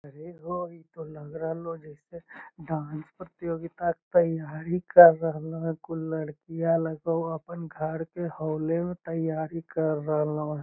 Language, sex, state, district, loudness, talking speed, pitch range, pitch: Magahi, male, Bihar, Lakhisarai, -27 LUFS, 145 wpm, 155-170 Hz, 165 Hz